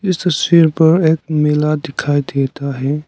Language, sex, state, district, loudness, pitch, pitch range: Hindi, male, Arunachal Pradesh, Lower Dibang Valley, -15 LUFS, 150 Hz, 145-160 Hz